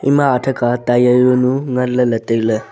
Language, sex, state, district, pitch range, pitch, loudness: Wancho, male, Arunachal Pradesh, Longding, 120-125 Hz, 125 Hz, -15 LUFS